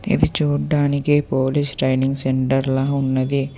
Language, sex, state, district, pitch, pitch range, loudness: Telugu, male, Telangana, Hyderabad, 135 Hz, 130-145 Hz, -19 LUFS